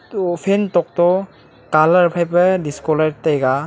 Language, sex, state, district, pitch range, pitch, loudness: Wancho, male, Arunachal Pradesh, Longding, 155-185 Hz, 175 Hz, -16 LUFS